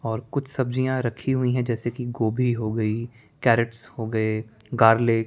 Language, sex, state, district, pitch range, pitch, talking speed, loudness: Hindi, male, Chandigarh, Chandigarh, 110-125 Hz, 115 Hz, 180 wpm, -24 LUFS